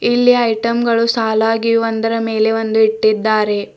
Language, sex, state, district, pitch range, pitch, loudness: Kannada, female, Karnataka, Bidar, 220-230 Hz, 225 Hz, -15 LUFS